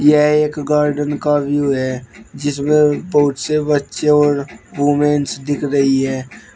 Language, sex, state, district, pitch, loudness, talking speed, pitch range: Hindi, male, Uttar Pradesh, Shamli, 145 Hz, -16 LUFS, 135 wpm, 140-150 Hz